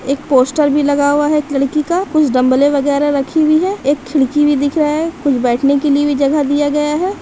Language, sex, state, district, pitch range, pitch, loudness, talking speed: Hindi, female, Jharkhand, Sahebganj, 280-300 Hz, 290 Hz, -14 LUFS, 260 wpm